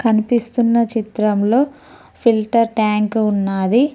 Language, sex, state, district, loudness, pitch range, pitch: Telugu, female, Telangana, Mahabubabad, -17 LUFS, 215-240 Hz, 225 Hz